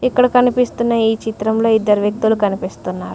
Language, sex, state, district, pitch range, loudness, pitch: Telugu, female, Telangana, Mahabubabad, 205-240 Hz, -16 LUFS, 220 Hz